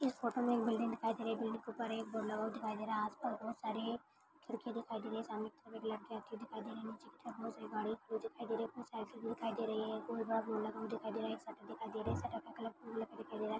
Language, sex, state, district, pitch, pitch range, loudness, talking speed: Hindi, female, Maharashtra, Dhule, 225 Hz, 220-230 Hz, -42 LUFS, 335 wpm